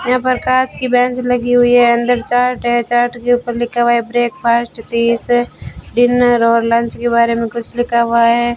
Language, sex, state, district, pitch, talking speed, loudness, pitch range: Hindi, female, Rajasthan, Bikaner, 240 Hz, 205 wpm, -14 LUFS, 235-245 Hz